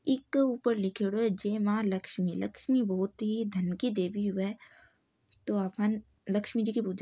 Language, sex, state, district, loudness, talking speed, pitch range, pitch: Marwari, female, Rajasthan, Nagaur, -31 LUFS, 190 wpm, 195-230 Hz, 210 Hz